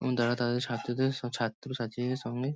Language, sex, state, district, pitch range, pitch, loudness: Bengali, male, West Bengal, Kolkata, 120-130 Hz, 120 Hz, -32 LUFS